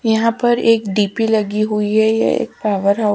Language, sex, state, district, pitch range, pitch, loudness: Hindi, female, Haryana, Charkhi Dadri, 210-225 Hz, 215 Hz, -16 LUFS